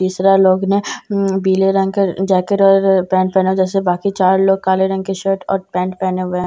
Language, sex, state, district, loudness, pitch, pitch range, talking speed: Hindi, female, Bihar, Katihar, -15 LUFS, 190 Hz, 185-195 Hz, 250 wpm